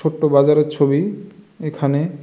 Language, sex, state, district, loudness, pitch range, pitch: Bengali, male, Tripura, West Tripura, -17 LUFS, 145-170 Hz, 150 Hz